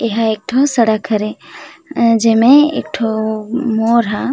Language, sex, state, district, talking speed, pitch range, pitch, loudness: Chhattisgarhi, female, Chhattisgarh, Rajnandgaon, 140 wpm, 220-235 Hz, 230 Hz, -14 LUFS